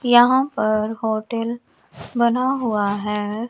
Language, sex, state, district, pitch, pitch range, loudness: Hindi, female, Chandigarh, Chandigarh, 230 Hz, 215-240 Hz, -20 LUFS